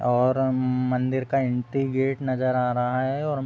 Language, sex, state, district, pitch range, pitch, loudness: Hindi, male, Uttar Pradesh, Deoria, 125-135 Hz, 130 Hz, -24 LUFS